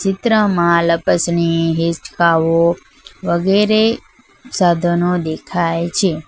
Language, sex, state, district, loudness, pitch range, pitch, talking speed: Gujarati, female, Gujarat, Valsad, -15 LUFS, 165-195 Hz, 170 Hz, 75 wpm